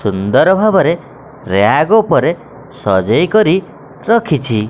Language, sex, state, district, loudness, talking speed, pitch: Odia, male, Odisha, Khordha, -13 LUFS, 90 wpm, 155 Hz